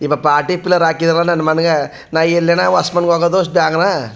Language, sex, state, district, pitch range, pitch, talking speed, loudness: Kannada, male, Karnataka, Chamarajanagar, 155-175 Hz, 165 Hz, 200 wpm, -14 LUFS